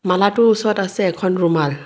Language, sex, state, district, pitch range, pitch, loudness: Assamese, female, Assam, Kamrup Metropolitan, 175-205 Hz, 190 Hz, -17 LUFS